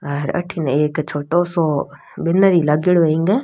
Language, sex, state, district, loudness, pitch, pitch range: Rajasthani, female, Rajasthan, Nagaur, -17 LUFS, 165 Hz, 150-175 Hz